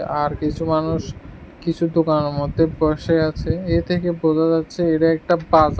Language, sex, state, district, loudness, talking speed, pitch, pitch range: Bengali, male, Tripura, West Tripura, -20 LUFS, 155 wpm, 160 Hz, 155-165 Hz